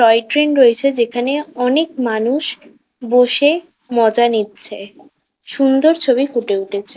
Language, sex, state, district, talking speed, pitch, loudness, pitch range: Bengali, female, West Bengal, Kolkata, 110 wpm, 250 Hz, -15 LUFS, 230-285 Hz